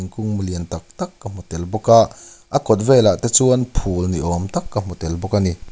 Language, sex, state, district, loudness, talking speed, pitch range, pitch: Mizo, male, Mizoram, Aizawl, -18 LUFS, 230 wpm, 90-115 Hz, 100 Hz